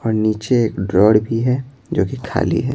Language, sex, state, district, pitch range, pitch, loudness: Hindi, male, Bihar, Patna, 105-125 Hz, 110 Hz, -18 LUFS